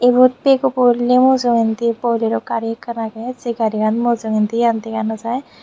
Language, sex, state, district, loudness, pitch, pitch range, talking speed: Chakma, female, Tripura, Unakoti, -17 LUFS, 235 Hz, 225-245 Hz, 150 wpm